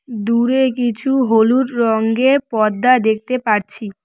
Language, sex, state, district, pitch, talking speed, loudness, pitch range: Bengali, female, West Bengal, Cooch Behar, 235 Hz, 105 wpm, -16 LUFS, 220-255 Hz